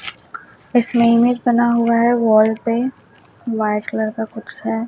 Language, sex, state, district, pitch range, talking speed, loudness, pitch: Hindi, male, Chhattisgarh, Raipur, 220-240 Hz, 145 wpm, -17 LUFS, 230 Hz